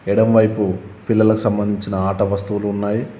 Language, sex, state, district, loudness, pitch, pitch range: Telugu, male, Telangana, Komaram Bheem, -18 LUFS, 105 Hz, 100-110 Hz